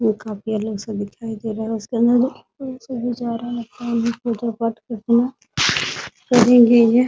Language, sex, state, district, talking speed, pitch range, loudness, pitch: Hindi, female, Bihar, Muzaffarpur, 125 wpm, 220-240 Hz, -19 LUFS, 235 Hz